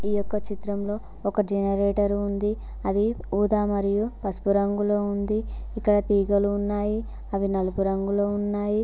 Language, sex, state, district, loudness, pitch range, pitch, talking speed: Telugu, female, Telangana, Mahabubabad, -24 LUFS, 200-210 Hz, 205 Hz, 130 wpm